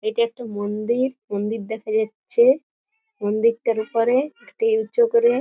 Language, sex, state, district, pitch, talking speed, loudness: Bengali, female, West Bengal, Jhargram, 240 Hz, 120 wpm, -21 LUFS